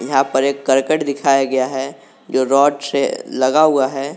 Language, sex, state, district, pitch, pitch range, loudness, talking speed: Hindi, male, Jharkhand, Garhwa, 135 Hz, 135-140 Hz, -16 LUFS, 185 wpm